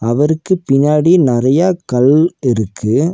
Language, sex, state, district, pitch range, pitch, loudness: Tamil, male, Tamil Nadu, Nilgiris, 125-165 Hz, 145 Hz, -13 LUFS